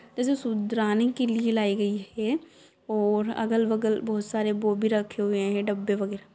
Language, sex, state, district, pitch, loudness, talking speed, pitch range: Magahi, female, Bihar, Gaya, 215 Hz, -26 LUFS, 170 wpm, 205-225 Hz